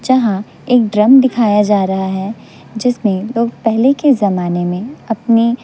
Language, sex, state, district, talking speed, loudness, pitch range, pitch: Hindi, female, Chhattisgarh, Raipur, 150 wpm, -14 LUFS, 205-245 Hz, 225 Hz